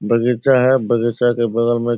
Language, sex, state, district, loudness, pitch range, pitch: Hindi, male, Bihar, Purnia, -16 LUFS, 115-125 Hz, 120 Hz